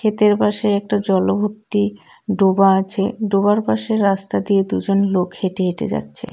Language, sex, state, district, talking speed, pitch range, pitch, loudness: Bengali, female, West Bengal, Cooch Behar, 140 wpm, 190-210 Hz, 200 Hz, -18 LUFS